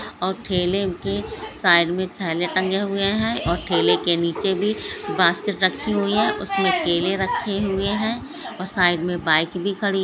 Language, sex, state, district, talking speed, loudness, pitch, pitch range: Hindi, female, Bihar, Samastipur, 175 wpm, -21 LUFS, 195 Hz, 180-200 Hz